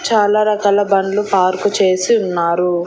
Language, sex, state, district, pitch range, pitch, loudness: Telugu, female, Andhra Pradesh, Annamaya, 185-210 Hz, 200 Hz, -15 LUFS